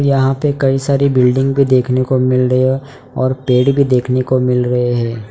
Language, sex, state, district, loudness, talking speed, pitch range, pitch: Hindi, male, Gujarat, Valsad, -14 LUFS, 205 wpm, 125-135 Hz, 130 Hz